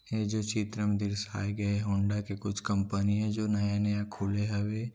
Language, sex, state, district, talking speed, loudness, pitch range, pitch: Hindi, male, Chhattisgarh, Kabirdham, 180 wpm, -31 LUFS, 100-105 Hz, 105 Hz